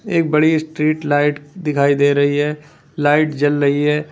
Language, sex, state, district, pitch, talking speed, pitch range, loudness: Hindi, male, Uttar Pradesh, Lalitpur, 150 Hz, 175 wpm, 145-155 Hz, -16 LUFS